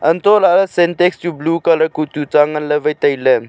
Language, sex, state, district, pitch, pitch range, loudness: Wancho, male, Arunachal Pradesh, Longding, 160 Hz, 150-175 Hz, -14 LUFS